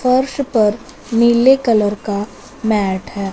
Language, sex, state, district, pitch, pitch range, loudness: Hindi, female, Punjab, Fazilka, 225 Hz, 205-255 Hz, -16 LUFS